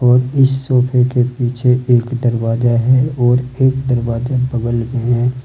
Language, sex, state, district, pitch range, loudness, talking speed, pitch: Hindi, male, Uttar Pradesh, Saharanpur, 120-130 Hz, -15 LUFS, 155 wpm, 125 Hz